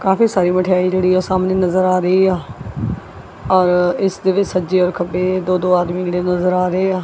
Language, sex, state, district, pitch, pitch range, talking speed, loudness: Punjabi, female, Punjab, Kapurthala, 185 Hz, 180-185 Hz, 205 wpm, -16 LUFS